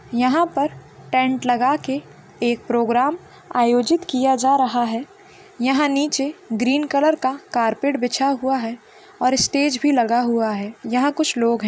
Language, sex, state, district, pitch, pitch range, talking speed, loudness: Hindi, female, Chhattisgarh, Kabirdham, 265 Hz, 240-290 Hz, 160 wpm, -20 LUFS